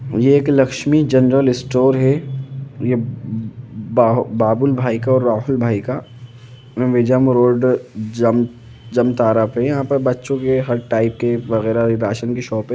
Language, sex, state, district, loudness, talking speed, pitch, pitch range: Hindi, male, Jharkhand, Jamtara, -17 LUFS, 140 wpm, 125 Hz, 115-130 Hz